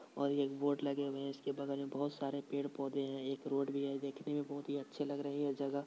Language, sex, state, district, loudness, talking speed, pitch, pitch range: Hindi, male, Bihar, Supaul, -40 LUFS, 285 wpm, 140 Hz, 140-145 Hz